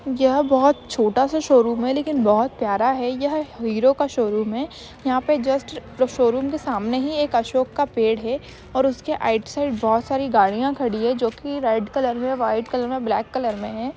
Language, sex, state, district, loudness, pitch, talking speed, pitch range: Hindi, female, Maharashtra, Chandrapur, -21 LUFS, 255 Hz, 205 wpm, 230-275 Hz